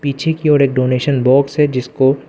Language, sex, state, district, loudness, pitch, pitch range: Hindi, male, Arunachal Pradesh, Lower Dibang Valley, -14 LUFS, 140 Hz, 130-145 Hz